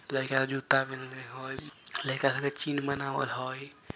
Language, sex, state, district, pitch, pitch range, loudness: Bajjika, female, Bihar, Vaishali, 135 Hz, 130-140 Hz, -32 LUFS